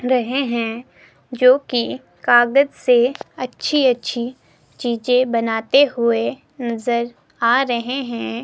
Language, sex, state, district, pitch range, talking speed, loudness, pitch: Hindi, female, Himachal Pradesh, Shimla, 235-255 Hz, 105 wpm, -18 LUFS, 245 Hz